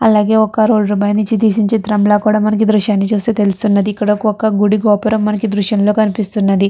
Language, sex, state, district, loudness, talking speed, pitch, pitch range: Telugu, female, Andhra Pradesh, Chittoor, -13 LUFS, 190 wpm, 210 Hz, 205-215 Hz